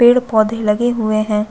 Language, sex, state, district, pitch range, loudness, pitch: Hindi, female, Chhattisgarh, Bastar, 215-240 Hz, -15 LUFS, 220 Hz